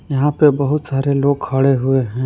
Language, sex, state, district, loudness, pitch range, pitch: Hindi, male, Jharkhand, Palamu, -16 LUFS, 135-145 Hz, 140 Hz